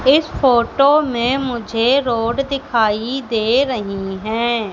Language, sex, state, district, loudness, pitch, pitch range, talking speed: Hindi, female, Madhya Pradesh, Katni, -17 LUFS, 240 Hz, 225-270 Hz, 115 wpm